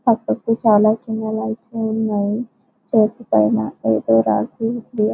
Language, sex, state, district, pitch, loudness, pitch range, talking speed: Telugu, female, Telangana, Karimnagar, 220 Hz, -19 LUFS, 205-230 Hz, 115 wpm